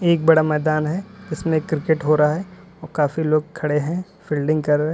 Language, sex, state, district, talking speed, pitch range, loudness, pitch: Hindi, male, Uttar Pradesh, Lalitpur, 220 wpm, 150-170 Hz, -20 LUFS, 155 Hz